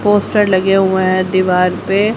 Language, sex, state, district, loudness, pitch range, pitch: Hindi, female, Haryana, Rohtak, -13 LUFS, 185-205 Hz, 190 Hz